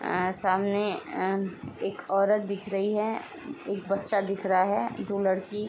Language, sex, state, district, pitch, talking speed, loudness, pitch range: Hindi, female, Uttar Pradesh, Etah, 200 Hz, 170 wpm, -28 LUFS, 195-210 Hz